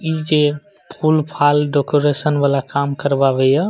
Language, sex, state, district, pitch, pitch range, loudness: Maithili, male, Bihar, Madhepura, 145 Hz, 140-150 Hz, -16 LUFS